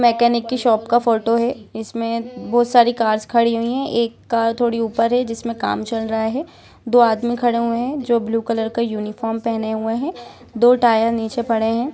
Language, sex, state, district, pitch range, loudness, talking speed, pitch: Hindi, female, Jharkhand, Jamtara, 225-240 Hz, -19 LUFS, 205 wpm, 230 Hz